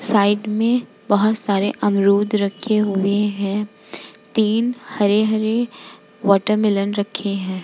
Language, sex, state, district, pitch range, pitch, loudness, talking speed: Hindi, female, Bihar, Vaishali, 200-215 Hz, 210 Hz, -19 LUFS, 110 wpm